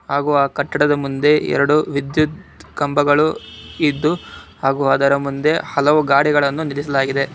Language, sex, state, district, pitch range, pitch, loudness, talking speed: Kannada, male, Karnataka, Bangalore, 140-150 Hz, 145 Hz, -17 LUFS, 115 wpm